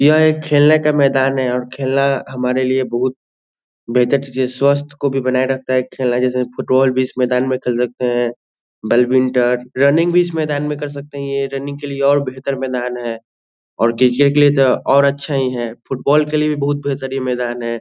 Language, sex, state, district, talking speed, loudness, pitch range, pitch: Hindi, male, Bihar, Lakhisarai, 215 wpm, -16 LUFS, 125-140 Hz, 130 Hz